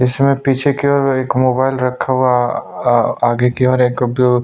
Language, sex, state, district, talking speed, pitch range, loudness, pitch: Hindi, male, Chhattisgarh, Sukma, 190 wpm, 125-135 Hz, -15 LUFS, 130 Hz